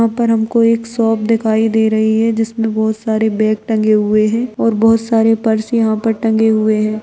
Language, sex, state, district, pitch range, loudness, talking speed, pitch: Hindi, female, Bihar, Araria, 220-225 Hz, -14 LUFS, 215 wpm, 220 Hz